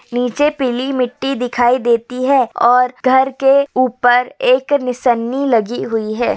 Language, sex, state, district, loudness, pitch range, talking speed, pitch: Hindi, female, Uttar Pradesh, Hamirpur, -15 LUFS, 245-265 Hz, 140 wpm, 250 Hz